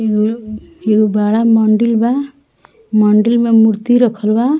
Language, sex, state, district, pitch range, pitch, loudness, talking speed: Bhojpuri, female, Bihar, Muzaffarpur, 215-240 Hz, 225 Hz, -13 LUFS, 115 wpm